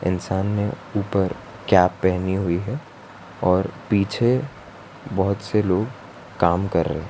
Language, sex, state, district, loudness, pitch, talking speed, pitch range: Hindi, male, Gujarat, Valsad, -22 LUFS, 95 Hz, 135 wpm, 90-105 Hz